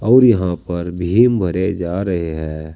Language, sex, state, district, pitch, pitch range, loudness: Hindi, male, Uttar Pradesh, Saharanpur, 90 Hz, 85-100 Hz, -17 LUFS